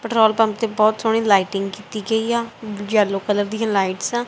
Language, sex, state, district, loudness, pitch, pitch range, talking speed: Punjabi, female, Punjab, Kapurthala, -19 LUFS, 215 Hz, 205-225 Hz, 195 wpm